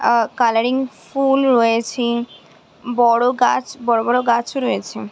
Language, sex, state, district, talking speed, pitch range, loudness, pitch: Bengali, female, West Bengal, Jhargram, 130 wpm, 230-255 Hz, -18 LUFS, 240 Hz